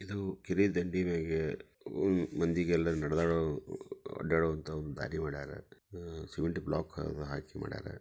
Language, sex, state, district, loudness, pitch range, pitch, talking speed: Kannada, male, Karnataka, Dharwad, -35 LUFS, 80-95 Hz, 85 Hz, 125 wpm